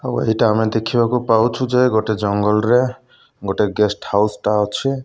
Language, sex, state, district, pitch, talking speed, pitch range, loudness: Odia, male, Odisha, Malkangiri, 110 Hz, 155 wpm, 105-125 Hz, -17 LUFS